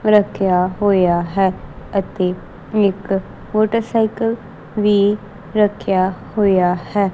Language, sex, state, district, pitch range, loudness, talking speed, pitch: Punjabi, female, Punjab, Kapurthala, 185-210 Hz, -18 LUFS, 85 wpm, 200 Hz